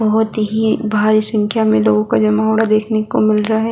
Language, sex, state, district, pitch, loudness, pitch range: Hindi, female, Bihar, Kishanganj, 215 Hz, -15 LUFS, 215-220 Hz